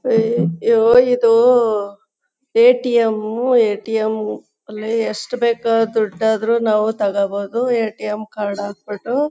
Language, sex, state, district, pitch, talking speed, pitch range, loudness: Kannada, female, Karnataka, Chamarajanagar, 225 Hz, 95 wpm, 215-235 Hz, -17 LUFS